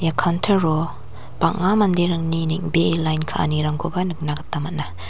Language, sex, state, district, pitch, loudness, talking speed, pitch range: Garo, female, Meghalaya, West Garo Hills, 165 Hz, -21 LUFS, 105 wpm, 150-175 Hz